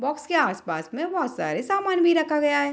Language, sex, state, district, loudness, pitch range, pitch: Hindi, female, Bihar, Madhepura, -24 LUFS, 285-345 Hz, 300 Hz